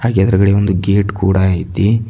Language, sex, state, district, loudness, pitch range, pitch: Kannada, male, Karnataka, Bidar, -14 LUFS, 95-105 Hz, 100 Hz